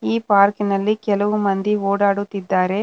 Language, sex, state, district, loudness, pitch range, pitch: Kannada, female, Karnataka, Bangalore, -19 LUFS, 195-210 Hz, 200 Hz